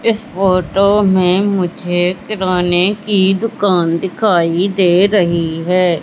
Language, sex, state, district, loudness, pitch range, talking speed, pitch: Hindi, female, Madhya Pradesh, Katni, -14 LUFS, 175-200 Hz, 110 wpm, 185 Hz